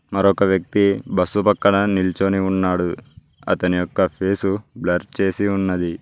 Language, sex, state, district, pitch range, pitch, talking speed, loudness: Telugu, male, Telangana, Mahabubabad, 90-100 Hz, 95 Hz, 120 wpm, -19 LUFS